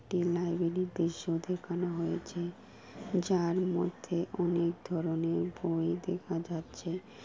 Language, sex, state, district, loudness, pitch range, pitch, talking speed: Bengali, female, West Bengal, Kolkata, -34 LUFS, 170-180 Hz, 175 Hz, 100 wpm